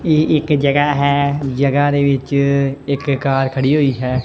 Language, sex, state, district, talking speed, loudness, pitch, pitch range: Punjabi, male, Punjab, Kapurthala, 170 wpm, -16 LUFS, 140 Hz, 135-145 Hz